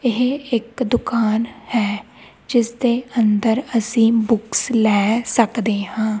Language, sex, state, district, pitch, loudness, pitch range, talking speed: Punjabi, female, Punjab, Kapurthala, 230 Hz, -19 LUFS, 220-240 Hz, 115 wpm